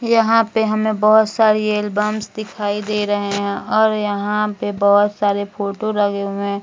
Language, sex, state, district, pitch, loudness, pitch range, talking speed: Hindi, female, Bihar, Gopalganj, 210 Hz, -18 LUFS, 205-215 Hz, 170 wpm